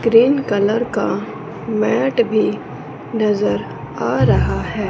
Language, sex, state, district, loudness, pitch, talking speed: Hindi, female, Punjab, Fazilka, -18 LUFS, 215 Hz, 110 wpm